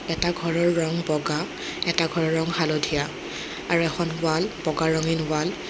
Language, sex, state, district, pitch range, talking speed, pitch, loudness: Assamese, female, Assam, Kamrup Metropolitan, 155-170 Hz, 160 wpm, 165 Hz, -25 LUFS